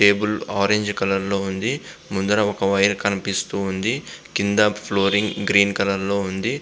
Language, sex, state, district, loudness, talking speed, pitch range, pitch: Telugu, male, Andhra Pradesh, Visakhapatnam, -21 LUFS, 125 wpm, 95-105 Hz, 100 Hz